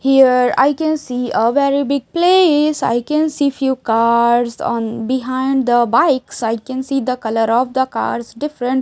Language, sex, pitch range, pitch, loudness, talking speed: English, female, 235-280 Hz, 260 Hz, -16 LUFS, 175 wpm